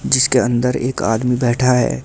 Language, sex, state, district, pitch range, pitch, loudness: Hindi, male, Delhi, New Delhi, 120-125 Hz, 125 Hz, -16 LUFS